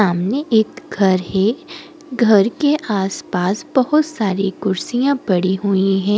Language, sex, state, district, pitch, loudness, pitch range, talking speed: Hindi, female, Goa, North and South Goa, 210 Hz, -17 LUFS, 195-275 Hz, 135 wpm